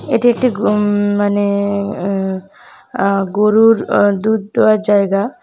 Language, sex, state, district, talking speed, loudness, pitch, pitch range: Bengali, female, West Bengal, Jalpaiguri, 110 wpm, -14 LUFS, 205 Hz, 200-215 Hz